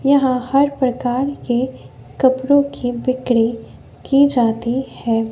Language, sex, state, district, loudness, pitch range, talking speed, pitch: Hindi, female, Bihar, West Champaran, -18 LUFS, 240-275 Hz, 115 wpm, 255 Hz